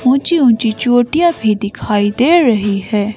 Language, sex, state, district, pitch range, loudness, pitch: Hindi, female, Himachal Pradesh, Shimla, 210-270 Hz, -13 LUFS, 230 Hz